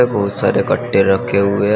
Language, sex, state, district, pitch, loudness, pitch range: Hindi, male, Uttar Pradesh, Shamli, 100 Hz, -15 LUFS, 100-105 Hz